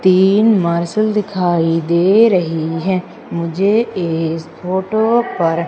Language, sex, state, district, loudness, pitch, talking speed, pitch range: Hindi, female, Madhya Pradesh, Umaria, -15 LUFS, 185 Hz, 105 wpm, 170-205 Hz